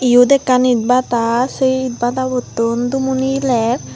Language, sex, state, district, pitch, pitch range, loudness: Chakma, female, Tripura, Unakoti, 250 Hz, 240-260 Hz, -15 LUFS